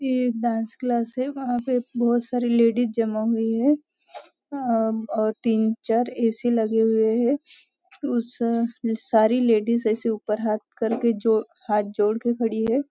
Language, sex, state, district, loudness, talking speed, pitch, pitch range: Hindi, female, Maharashtra, Nagpur, -23 LUFS, 150 wpm, 230 Hz, 225-245 Hz